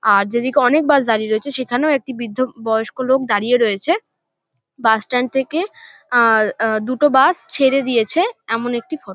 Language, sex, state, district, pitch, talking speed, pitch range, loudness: Bengali, female, West Bengal, North 24 Parganas, 250 Hz, 165 wpm, 225-285 Hz, -17 LUFS